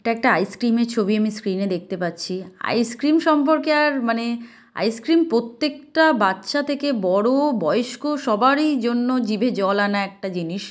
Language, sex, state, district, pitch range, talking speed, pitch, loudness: Bengali, female, West Bengal, Kolkata, 200-285 Hz, 155 wpm, 235 Hz, -20 LUFS